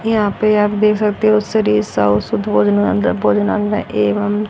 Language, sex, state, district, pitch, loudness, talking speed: Hindi, female, Haryana, Rohtak, 205 Hz, -15 LUFS, 95 wpm